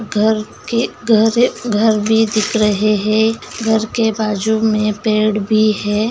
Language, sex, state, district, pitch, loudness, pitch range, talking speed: Hindi, female, Bihar, Begusarai, 220 Hz, -15 LUFS, 215-220 Hz, 145 wpm